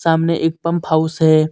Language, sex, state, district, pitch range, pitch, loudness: Hindi, male, Jharkhand, Deoghar, 160-165 Hz, 160 Hz, -16 LUFS